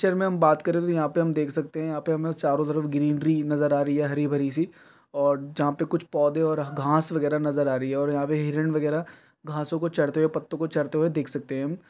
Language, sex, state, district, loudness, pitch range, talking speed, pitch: Hindi, male, Uttar Pradesh, Varanasi, -25 LUFS, 145-160 Hz, 265 wpm, 150 Hz